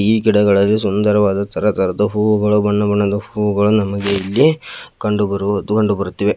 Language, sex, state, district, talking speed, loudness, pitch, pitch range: Kannada, male, Karnataka, Belgaum, 115 wpm, -16 LUFS, 105 Hz, 100-105 Hz